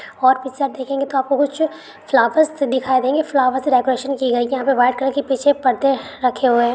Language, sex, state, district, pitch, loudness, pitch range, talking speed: Hindi, female, Bihar, Begusarai, 265 Hz, -18 LUFS, 255-275 Hz, 220 wpm